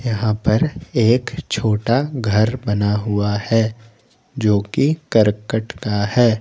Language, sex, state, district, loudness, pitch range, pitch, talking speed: Hindi, male, Jharkhand, Garhwa, -18 LUFS, 105-125 Hz, 110 Hz, 110 wpm